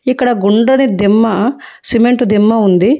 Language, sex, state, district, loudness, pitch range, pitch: Telugu, female, Telangana, Hyderabad, -11 LUFS, 210-255 Hz, 230 Hz